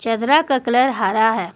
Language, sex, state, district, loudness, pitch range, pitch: Hindi, female, Jharkhand, Deoghar, -17 LUFS, 225-265 Hz, 235 Hz